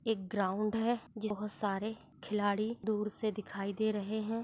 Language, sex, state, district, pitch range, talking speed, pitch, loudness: Hindi, female, Chhattisgarh, Balrampur, 205-220 Hz, 160 wpm, 215 Hz, -35 LUFS